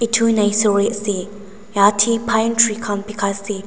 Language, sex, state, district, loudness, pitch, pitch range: Nagamese, female, Nagaland, Dimapur, -17 LUFS, 210 Hz, 200-220 Hz